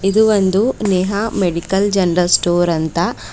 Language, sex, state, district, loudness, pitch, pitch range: Kannada, female, Karnataka, Bidar, -15 LUFS, 190 Hz, 175-205 Hz